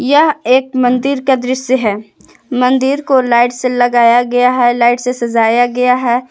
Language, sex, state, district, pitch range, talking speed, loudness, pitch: Hindi, female, Jharkhand, Palamu, 240-260 Hz, 170 wpm, -12 LUFS, 250 Hz